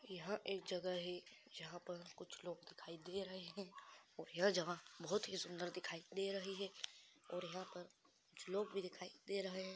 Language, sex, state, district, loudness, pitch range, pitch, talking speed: Hindi, male, Bihar, Madhepura, -47 LUFS, 175-195 Hz, 185 Hz, 195 wpm